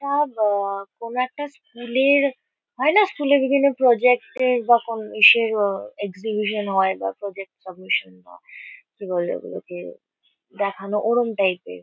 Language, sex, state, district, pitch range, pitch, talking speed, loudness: Bengali, female, West Bengal, Kolkata, 195-255 Hz, 215 Hz, 145 wpm, -21 LUFS